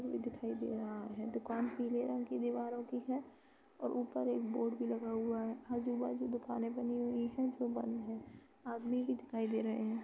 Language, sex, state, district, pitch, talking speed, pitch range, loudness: Hindi, female, Uttar Pradesh, Jalaun, 240 Hz, 210 wpm, 225-245 Hz, -39 LUFS